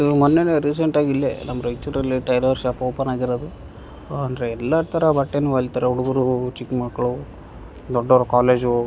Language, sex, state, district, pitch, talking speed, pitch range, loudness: Kannada, male, Karnataka, Raichur, 130 Hz, 150 wpm, 125-145 Hz, -20 LUFS